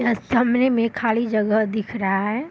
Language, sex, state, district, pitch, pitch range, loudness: Hindi, female, Bihar, Madhepura, 230 Hz, 215-240 Hz, -21 LUFS